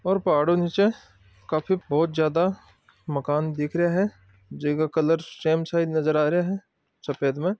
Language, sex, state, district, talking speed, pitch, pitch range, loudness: Marwari, male, Rajasthan, Nagaur, 165 wpm, 160 Hz, 150-175 Hz, -24 LUFS